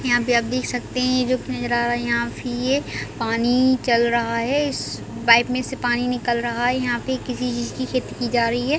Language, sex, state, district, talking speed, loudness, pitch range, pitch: Hindi, female, Chhattisgarh, Raigarh, 225 wpm, -21 LUFS, 235-255 Hz, 245 Hz